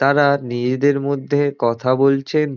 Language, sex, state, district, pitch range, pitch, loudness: Bengali, male, West Bengal, Dakshin Dinajpur, 130-145 Hz, 140 Hz, -18 LUFS